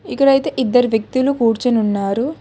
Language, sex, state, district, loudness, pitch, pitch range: Telugu, female, Telangana, Hyderabad, -16 LUFS, 245 Hz, 225-270 Hz